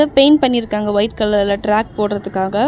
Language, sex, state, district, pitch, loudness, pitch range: Tamil, female, Tamil Nadu, Chennai, 210 Hz, -16 LUFS, 205-235 Hz